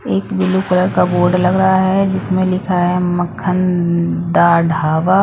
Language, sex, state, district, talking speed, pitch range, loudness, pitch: Hindi, female, Punjab, Pathankot, 160 wpm, 175-190 Hz, -15 LUFS, 180 Hz